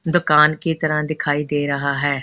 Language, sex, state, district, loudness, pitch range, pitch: Hindi, female, Punjab, Kapurthala, -18 LUFS, 145-155 Hz, 150 Hz